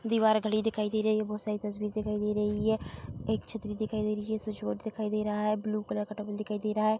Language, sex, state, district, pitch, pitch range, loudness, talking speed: Hindi, female, Bihar, Gopalganj, 215 Hz, 210-215 Hz, -31 LUFS, 285 wpm